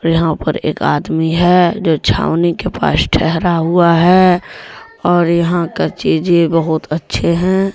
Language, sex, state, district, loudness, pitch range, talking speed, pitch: Hindi, male, Jharkhand, Deoghar, -13 LUFS, 160-175 Hz, 145 wpm, 170 Hz